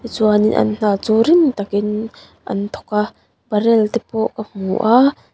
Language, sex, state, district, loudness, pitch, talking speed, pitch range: Mizo, female, Mizoram, Aizawl, -17 LUFS, 215 Hz, 170 wpm, 210-230 Hz